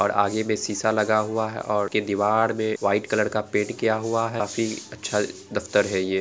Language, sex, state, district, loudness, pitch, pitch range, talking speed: Angika, female, Bihar, Araria, -24 LUFS, 110 Hz, 105-110 Hz, 220 wpm